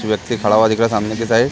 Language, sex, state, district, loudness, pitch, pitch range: Hindi, male, Chhattisgarh, Sarguja, -16 LUFS, 110 Hz, 110-115 Hz